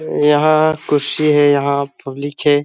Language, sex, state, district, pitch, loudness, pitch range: Hindi, male, Chhattisgarh, Balrampur, 145 Hz, -15 LUFS, 140-150 Hz